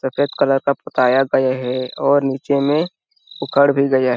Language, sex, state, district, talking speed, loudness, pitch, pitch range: Hindi, male, Chhattisgarh, Sarguja, 185 wpm, -17 LUFS, 135 Hz, 130-140 Hz